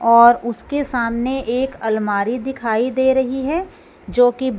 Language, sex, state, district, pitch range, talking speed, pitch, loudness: Hindi, female, Punjab, Fazilka, 235-265 Hz, 155 wpm, 245 Hz, -18 LUFS